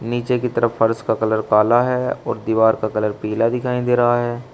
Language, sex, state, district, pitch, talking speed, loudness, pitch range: Hindi, male, Uttar Pradesh, Shamli, 115 Hz, 225 wpm, -18 LUFS, 110-125 Hz